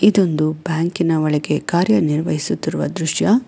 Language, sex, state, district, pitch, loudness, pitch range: Kannada, female, Karnataka, Bangalore, 165 Hz, -18 LUFS, 155-190 Hz